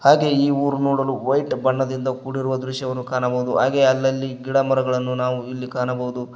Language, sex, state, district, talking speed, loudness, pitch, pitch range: Kannada, male, Karnataka, Koppal, 150 wpm, -21 LUFS, 130 Hz, 125-135 Hz